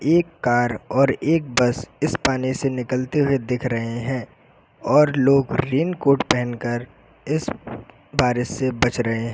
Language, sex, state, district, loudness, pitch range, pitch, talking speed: Hindi, male, Uttar Pradesh, Lucknow, -21 LUFS, 120-140 Hz, 130 Hz, 150 wpm